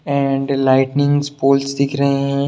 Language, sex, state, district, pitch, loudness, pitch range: Hindi, male, Bihar, Sitamarhi, 140 Hz, -16 LUFS, 135-140 Hz